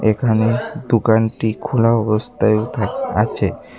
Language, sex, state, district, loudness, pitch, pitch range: Bengali, male, Tripura, West Tripura, -18 LUFS, 115 Hz, 110-120 Hz